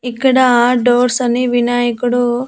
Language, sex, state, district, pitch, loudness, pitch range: Telugu, female, Andhra Pradesh, Annamaya, 245 Hz, -13 LUFS, 240-250 Hz